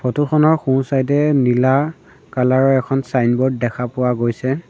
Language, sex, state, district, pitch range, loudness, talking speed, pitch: Assamese, male, Assam, Sonitpur, 125-140 Hz, -17 LUFS, 155 wpm, 130 Hz